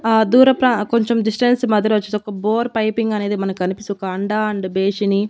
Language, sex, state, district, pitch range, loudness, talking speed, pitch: Telugu, female, Andhra Pradesh, Annamaya, 200-230 Hz, -18 LUFS, 190 wpm, 215 Hz